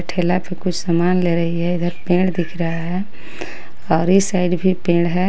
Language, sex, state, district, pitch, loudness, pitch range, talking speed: Hindi, female, Jharkhand, Garhwa, 180 Hz, -19 LUFS, 170-185 Hz, 205 wpm